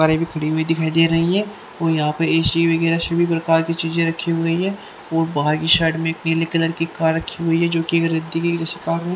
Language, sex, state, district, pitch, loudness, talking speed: Hindi, female, Haryana, Charkhi Dadri, 165 Hz, -19 LUFS, 205 wpm